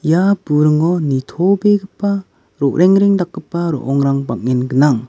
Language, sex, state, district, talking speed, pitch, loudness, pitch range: Garo, male, Meghalaya, West Garo Hills, 95 wpm, 160 Hz, -15 LUFS, 140-190 Hz